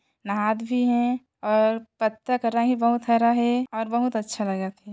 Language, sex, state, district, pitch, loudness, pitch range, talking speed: Chhattisgarhi, female, Chhattisgarh, Sarguja, 230 Hz, -24 LUFS, 215-245 Hz, 195 wpm